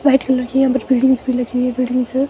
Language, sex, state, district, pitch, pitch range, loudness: Hindi, female, Himachal Pradesh, Shimla, 255 Hz, 250-265 Hz, -17 LUFS